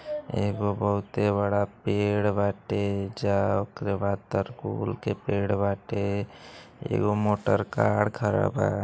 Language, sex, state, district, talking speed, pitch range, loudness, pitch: Bhojpuri, male, Uttar Pradesh, Gorakhpur, 130 wpm, 100-105 Hz, -27 LUFS, 100 Hz